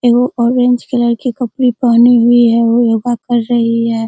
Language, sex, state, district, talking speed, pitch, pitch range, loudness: Hindi, female, Bihar, Araria, 190 wpm, 240 Hz, 235-245 Hz, -12 LUFS